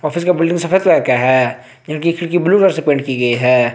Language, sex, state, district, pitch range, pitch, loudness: Hindi, male, Jharkhand, Garhwa, 130-175 Hz, 155 Hz, -14 LUFS